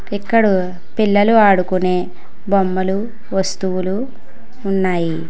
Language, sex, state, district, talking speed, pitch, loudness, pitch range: Telugu, female, Telangana, Hyderabad, 70 wpm, 195 Hz, -17 LUFS, 185-210 Hz